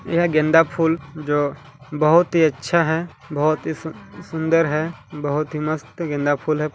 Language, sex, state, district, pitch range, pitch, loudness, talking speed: Hindi, male, Chhattisgarh, Balrampur, 145-165 Hz, 155 Hz, -20 LUFS, 170 wpm